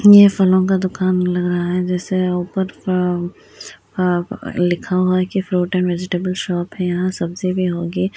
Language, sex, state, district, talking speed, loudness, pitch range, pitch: Hindi, female, Uttar Pradesh, Budaun, 185 wpm, -18 LUFS, 180-185 Hz, 180 Hz